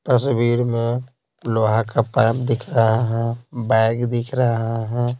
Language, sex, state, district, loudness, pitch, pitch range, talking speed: Hindi, male, Bihar, Patna, -20 LUFS, 115 Hz, 115-125 Hz, 140 wpm